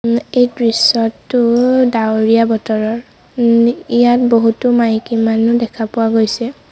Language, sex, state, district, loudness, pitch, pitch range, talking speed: Assamese, female, Assam, Sonitpur, -13 LUFS, 235 Hz, 225-240 Hz, 105 wpm